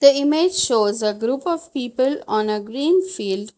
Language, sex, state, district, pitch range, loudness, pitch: English, female, Gujarat, Valsad, 215-320 Hz, -20 LUFS, 260 Hz